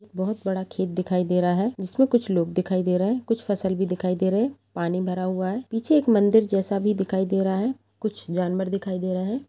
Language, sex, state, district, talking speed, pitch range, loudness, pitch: Hindi, female, Chhattisgarh, Rajnandgaon, 260 wpm, 185-215 Hz, -24 LUFS, 190 Hz